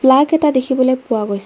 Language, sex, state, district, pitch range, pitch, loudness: Assamese, female, Assam, Kamrup Metropolitan, 240-270 Hz, 260 Hz, -15 LUFS